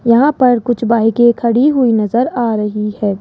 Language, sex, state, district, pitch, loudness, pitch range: Hindi, male, Rajasthan, Jaipur, 235 Hz, -13 LUFS, 220-245 Hz